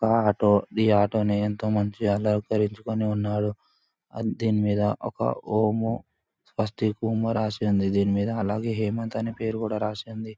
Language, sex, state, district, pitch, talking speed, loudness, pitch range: Telugu, male, Andhra Pradesh, Anantapur, 110 Hz, 145 wpm, -25 LUFS, 105-110 Hz